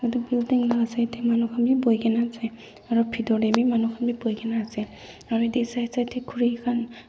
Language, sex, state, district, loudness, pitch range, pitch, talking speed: Nagamese, female, Nagaland, Dimapur, -25 LUFS, 230-240 Hz, 235 Hz, 220 wpm